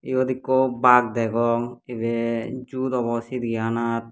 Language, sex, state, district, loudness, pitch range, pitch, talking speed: Chakma, male, Tripura, Dhalai, -23 LUFS, 115-130 Hz, 120 Hz, 130 wpm